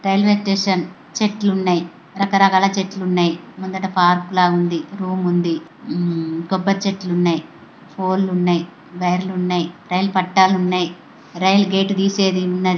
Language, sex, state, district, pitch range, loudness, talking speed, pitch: Telugu, female, Andhra Pradesh, Guntur, 175-195 Hz, -18 LUFS, 135 wpm, 185 Hz